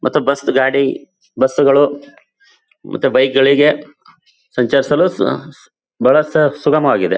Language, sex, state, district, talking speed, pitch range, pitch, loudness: Kannada, male, Karnataka, Bijapur, 100 wpm, 135-185 Hz, 145 Hz, -14 LUFS